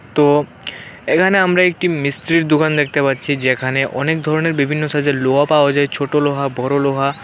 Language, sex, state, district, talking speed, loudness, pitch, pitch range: Bengali, male, Tripura, West Tripura, 165 wpm, -16 LUFS, 145 Hz, 140-155 Hz